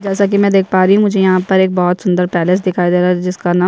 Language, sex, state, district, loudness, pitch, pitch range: Hindi, female, Chhattisgarh, Jashpur, -13 LUFS, 185 Hz, 180-195 Hz